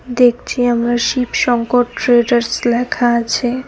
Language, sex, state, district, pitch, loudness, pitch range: Bengali, female, West Bengal, Cooch Behar, 245 Hz, -15 LUFS, 240-245 Hz